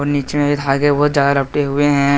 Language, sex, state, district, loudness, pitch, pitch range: Hindi, male, Jharkhand, Deoghar, -16 LUFS, 145 Hz, 140-145 Hz